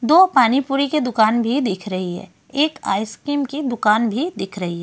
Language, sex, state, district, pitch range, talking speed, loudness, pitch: Hindi, female, Delhi, New Delhi, 210-285 Hz, 200 wpm, -19 LUFS, 245 Hz